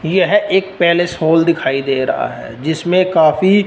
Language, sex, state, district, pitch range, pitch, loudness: Hindi, male, Punjab, Fazilka, 155-185 Hz, 170 Hz, -14 LUFS